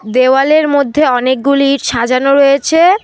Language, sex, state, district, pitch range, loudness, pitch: Bengali, female, West Bengal, Alipurduar, 255-290 Hz, -11 LUFS, 275 Hz